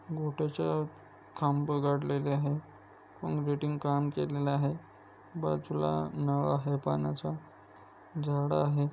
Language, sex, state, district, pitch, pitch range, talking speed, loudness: Marathi, male, Maharashtra, Dhule, 140 Hz, 95-145 Hz, 95 wpm, -32 LUFS